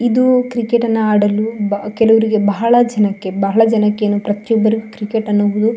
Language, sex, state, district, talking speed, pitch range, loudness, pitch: Kannada, female, Karnataka, Shimoga, 145 wpm, 205-230 Hz, -15 LUFS, 220 Hz